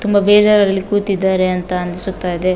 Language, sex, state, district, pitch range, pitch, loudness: Kannada, female, Karnataka, Dakshina Kannada, 185-205 Hz, 190 Hz, -15 LUFS